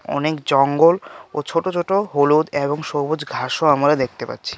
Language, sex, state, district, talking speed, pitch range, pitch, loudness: Bengali, male, Tripura, West Tripura, 155 wpm, 145-165 Hz, 150 Hz, -19 LUFS